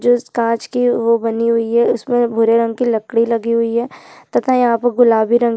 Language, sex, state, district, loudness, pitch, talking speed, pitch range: Hindi, female, Chhattisgarh, Jashpur, -15 LUFS, 230 Hz, 215 wpm, 230-245 Hz